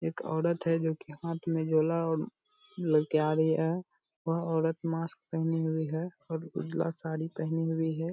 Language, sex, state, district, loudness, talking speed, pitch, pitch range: Hindi, male, Bihar, Purnia, -31 LUFS, 185 wpm, 165 Hz, 160-165 Hz